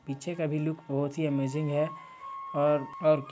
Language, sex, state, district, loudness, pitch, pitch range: Hindi, male, Chhattisgarh, Sarguja, -30 LUFS, 155 Hz, 145-160 Hz